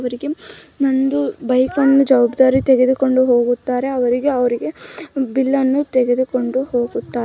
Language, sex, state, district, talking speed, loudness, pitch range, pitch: Kannada, female, Karnataka, Mysore, 105 wpm, -16 LUFS, 250-275 Hz, 260 Hz